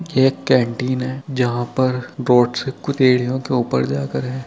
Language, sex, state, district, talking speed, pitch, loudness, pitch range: Hindi, male, Bihar, Araria, 145 wpm, 130 Hz, -19 LUFS, 120-130 Hz